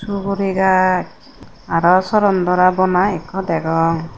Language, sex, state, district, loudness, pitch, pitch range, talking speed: Chakma, female, Tripura, Unakoti, -16 LUFS, 185 Hz, 170-195 Hz, 100 wpm